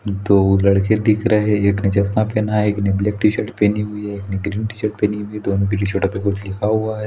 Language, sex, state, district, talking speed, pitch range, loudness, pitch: Hindi, male, Chhattisgarh, Raigarh, 270 wpm, 100-105 Hz, -18 LUFS, 105 Hz